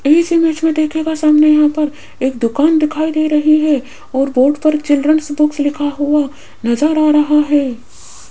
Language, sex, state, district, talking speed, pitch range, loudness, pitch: Hindi, female, Rajasthan, Jaipur, 175 wpm, 290-310 Hz, -14 LUFS, 300 Hz